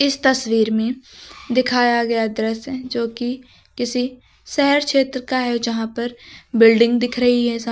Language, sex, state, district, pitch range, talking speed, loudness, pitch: Hindi, female, Uttar Pradesh, Lucknow, 235-255 Hz, 145 wpm, -19 LUFS, 245 Hz